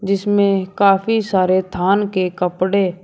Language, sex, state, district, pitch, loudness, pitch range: Hindi, male, Uttar Pradesh, Shamli, 195 Hz, -17 LUFS, 185-200 Hz